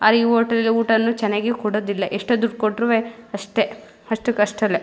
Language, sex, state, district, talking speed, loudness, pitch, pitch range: Kannada, female, Karnataka, Mysore, 135 wpm, -20 LUFS, 225 Hz, 210-230 Hz